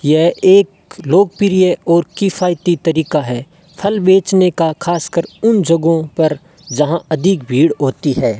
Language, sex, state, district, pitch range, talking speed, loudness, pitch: Hindi, male, Rajasthan, Bikaner, 160-190 Hz, 145 wpm, -14 LUFS, 170 Hz